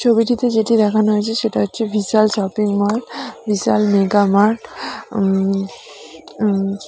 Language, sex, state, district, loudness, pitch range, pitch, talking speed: Bengali, female, West Bengal, Purulia, -17 LUFS, 200-225 Hz, 210 Hz, 120 wpm